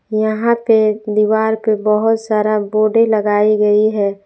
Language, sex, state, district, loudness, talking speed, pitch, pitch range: Hindi, female, Jharkhand, Palamu, -14 LUFS, 140 wpm, 215 Hz, 210-220 Hz